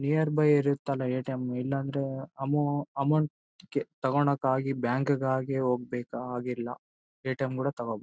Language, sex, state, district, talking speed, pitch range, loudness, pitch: Kannada, male, Karnataka, Bellary, 110 wpm, 130-145 Hz, -30 LUFS, 135 Hz